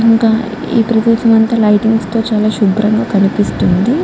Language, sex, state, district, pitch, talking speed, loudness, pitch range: Telugu, female, Andhra Pradesh, Guntur, 225 Hz, 135 wpm, -12 LUFS, 215-230 Hz